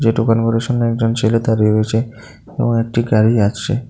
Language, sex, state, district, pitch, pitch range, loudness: Bengali, male, Tripura, South Tripura, 115 Hz, 110-115 Hz, -16 LUFS